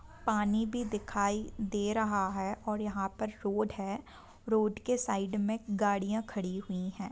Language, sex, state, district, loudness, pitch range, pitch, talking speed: Hindi, female, Bihar, Sitamarhi, -33 LUFS, 200-220 Hz, 210 Hz, 170 wpm